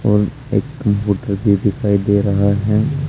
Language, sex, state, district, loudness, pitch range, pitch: Hindi, male, Uttar Pradesh, Saharanpur, -17 LUFS, 100-110 Hz, 105 Hz